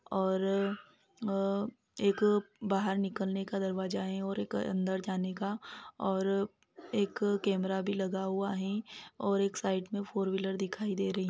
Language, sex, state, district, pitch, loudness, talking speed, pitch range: Hindi, female, Chhattisgarh, Bilaspur, 195 Hz, -33 LUFS, 155 wpm, 190-200 Hz